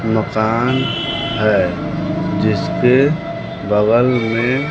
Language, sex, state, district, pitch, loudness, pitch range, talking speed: Hindi, male, Bihar, West Champaran, 120 Hz, -16 LUFS, 110-130 Hz, 65 wpm